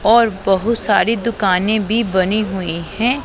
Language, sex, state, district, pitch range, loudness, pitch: Hindi, female, Punjab, Pathankot, 190-230 Hz, -17 LUFS, 215 Hz